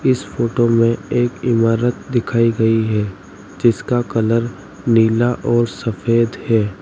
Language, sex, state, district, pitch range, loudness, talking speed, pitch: Hindi, male, Uttar Pradesh, Lalitpur, 110-120 Hz, -17 LUFS, 125 wpm, 115 Hz